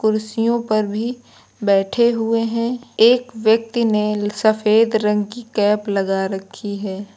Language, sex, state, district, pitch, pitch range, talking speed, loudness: Hindi, female, Uttar Pradesh, Lucknow, 220 Hz, 205-230 Hz, 135 wpm, -18 LUFS